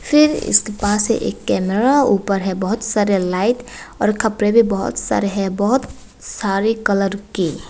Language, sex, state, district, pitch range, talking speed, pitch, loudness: Hindi, female, Tripura, West Tripura, 195-225 Hz, 155 wpm, 210 Hz, -17 LUFS